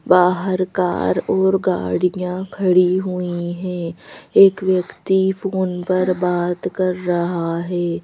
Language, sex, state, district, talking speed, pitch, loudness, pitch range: Hindi, female, Madhya Pradesh, Bhopal, 110 wpm, 180 Hz, -19 LUFS, 175-185 Hz